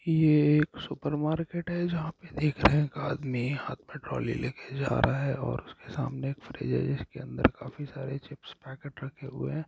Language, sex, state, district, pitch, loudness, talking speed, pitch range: Hindi, male, Andhra Pradesh, Krishna, 145 Hz, -30 LUFS, 210 wpm, 135-155 Hz